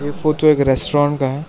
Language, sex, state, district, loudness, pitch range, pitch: Hindi, male, West Bengal, Alipurduar, -15 LUFS, 140-150 Hz, 145 Hz